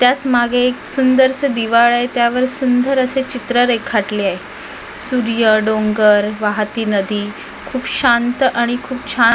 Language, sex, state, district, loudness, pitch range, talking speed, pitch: Marathi, female, Maharashtra, Mumbai Suburban, -15 LUFS, 215-255 Hz, 140 wpm, 240 Hz